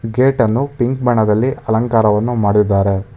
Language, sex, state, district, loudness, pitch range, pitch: Kannada, male, Karnataka, Bangalore, -15 LUFS, 105-125 Hz, 115 Hz